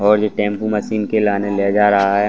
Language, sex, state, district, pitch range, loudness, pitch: Hindi, male, Chhattisgarh, Bastar, 100-105 Hz, -17 LUFS, 105 Hz